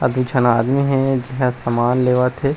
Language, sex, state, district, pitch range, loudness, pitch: Chhattisgarhi, male, Chhattisgarh, Rajnandgaon, 125-135 Hz, -17 LUFS, 125 Hz